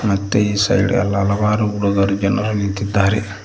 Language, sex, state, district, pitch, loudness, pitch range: Kannada, male, Karnataka, Koppal, 100 Hz, -17 LUFS, 100-105 Hz